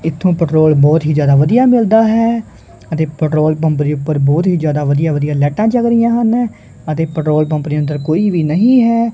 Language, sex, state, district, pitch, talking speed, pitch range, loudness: Punjabi, male, Punjab, Kapurthala, 160 Hz, 195 wpm, 150-225 Hz, -13 LUFS